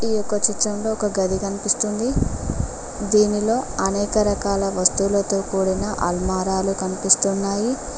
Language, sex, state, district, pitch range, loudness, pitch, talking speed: Telugu, female, Telangana, Mahabubabad, 195-210 Hz, -20 LUFS, 200 Hz, 105 wpm